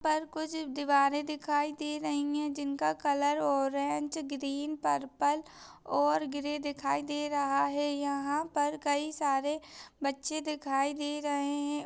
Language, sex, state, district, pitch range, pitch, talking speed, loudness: Hindi, female, Maharashtra, Pune, 280-300 Hz, 290 Hz, 135 wpm, -32 LUFS